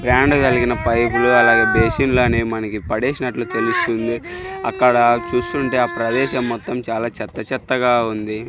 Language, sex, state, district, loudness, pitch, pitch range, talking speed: Telugu, male, Andhra Pradesh, Sri Satya Sai, -17 LUFS, 120 Hz, 115-125 Hz, 135 wpm